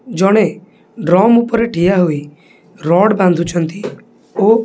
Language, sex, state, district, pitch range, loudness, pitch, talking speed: Odia, male, Odisha, Khordha, 170-220 Hz, -13 LUFS, 190 Hz, 105 wpm